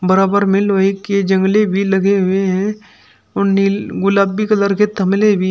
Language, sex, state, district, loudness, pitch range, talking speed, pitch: Hindi, male, Uttar Pradesh, Shamli, -15 LUFS, 195-200 Hz, 205 wpm, 195 Hz